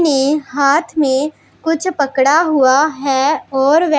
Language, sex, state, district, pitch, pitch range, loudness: Hindi, female, Punjab, Pathankot, 290 Hz, 270-315 Hz, -14 LUFS